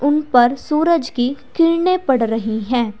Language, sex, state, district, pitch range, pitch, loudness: Hindi, female, Uttar Pradesh, Saharanpur, 245-310 Hz, 265 Hz, -17 LUFS